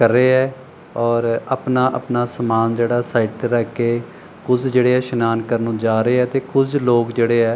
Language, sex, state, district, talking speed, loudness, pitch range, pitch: Punjabi, male, Punjab, Pathankot, 200 wpm, -18 LUFS, 115-130 Hz, 120 Hz